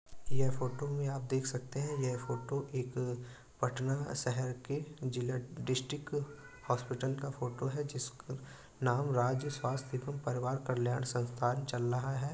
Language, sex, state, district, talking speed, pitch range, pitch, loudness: Hindi, male, Uttar Pradesh, Budaun, 150 wpm, 125-140 Hz, 130 Hz, -37 LUFS